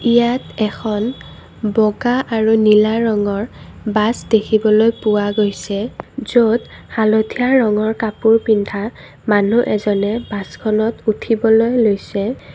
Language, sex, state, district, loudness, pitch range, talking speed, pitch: Assamese, female, Assam, Kamrup Metropolitan, -16 LUFS, 210-230 Hz, 95 wpm, 220 Hz